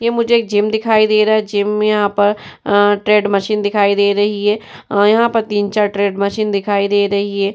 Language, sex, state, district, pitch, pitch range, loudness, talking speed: Hindi, female, Uttar Pradesh, Jyotiba Phule Nagar, 205 Hz, 200-215 Hz, -15 LUFS, 215 wpm